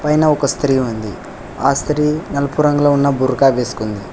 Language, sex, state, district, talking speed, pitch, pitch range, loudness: Telugu, male, Telangana, Hyderabad, 160 wpm, 140 Hz, 125-150 Hz, -16 LUFS